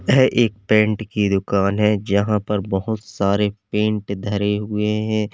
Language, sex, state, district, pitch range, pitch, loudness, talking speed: Hindi, male, Uttar Pradesh, Lalitpur, 100-105 Hz, 105 Hz, -20 LUFS, 155 wpm